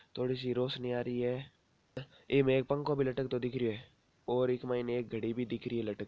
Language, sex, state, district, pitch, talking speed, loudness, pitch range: Marwari, male, Rajasthan, Nagaur, 125 Hz, 235 wpm, -34 LUFS, 120-130 Hz